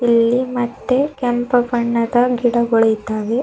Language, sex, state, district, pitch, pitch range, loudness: Kannada, female, Karnataka, Bidar, 240 Hz, 235-245 Hz, -17 LUFS